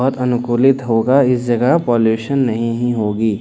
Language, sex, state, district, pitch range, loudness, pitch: Hindi, male, Bihar, Katihar, 115-130 Hz, -15 LUFS, 120 Hz